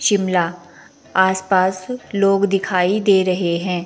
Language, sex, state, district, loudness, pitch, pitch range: Hindi, female, Himachal Pradesh, Shimla, -18 LUFS, 190 Hz, 180-195 Hz